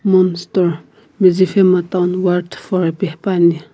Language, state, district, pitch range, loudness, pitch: Sumi, Nagaland, Kohima, 175-185 Hz, -15 LUFS, 180 Hz